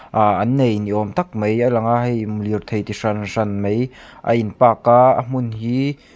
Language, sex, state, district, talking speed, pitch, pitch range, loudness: Mizo, male, Mizoram, Aizawl, 245 wpm, 115 Hz, 105-125 Hz, -18 LUFS